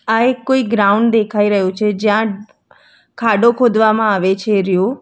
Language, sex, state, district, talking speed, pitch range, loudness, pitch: Gujarati, female, Gujarat, Valsad, 155 wpm, 205-230 Hz, -14 LUFS, 215 Hz